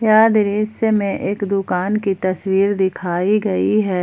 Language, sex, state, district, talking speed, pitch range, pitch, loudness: Hindi, female, Jharkhand, Palamu, 150 wpm, 190-210 Hz, 200 Hz, -18 LUFS